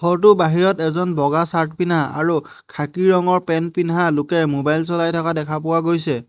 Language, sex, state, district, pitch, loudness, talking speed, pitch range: Assamese, male, Assam, Hailakandi, 165 Hz, -18 LUFS, 170 wpm, 155-175 Hz